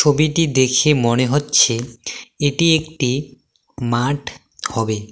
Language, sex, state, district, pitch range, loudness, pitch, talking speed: Bengali, male, West Bengal, Cooch Behar, 120-150 Hz, -17 LUFS, 135 Hz, 95 wpm